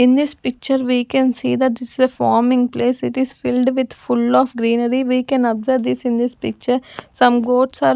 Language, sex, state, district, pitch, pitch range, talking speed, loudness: English, female, Punjab, Fazilka, 250 Hz, 240-260 Hz, 225 wpm, -17 LUFS